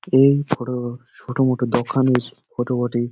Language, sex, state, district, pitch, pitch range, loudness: Bengali, male, West Bengal, Jalpaiguri, 125 Hz, 120-130 Hz, -20 LUFS